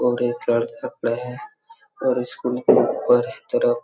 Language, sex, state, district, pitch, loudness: Hindi, male, Chhattisgarh, Raigarh, 180 Hz, -21 LUFS